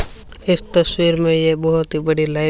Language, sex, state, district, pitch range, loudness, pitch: Hindi, female, Rajasthan, Bikaner, 155-170 Hz, -17 LUFS, 160 Hz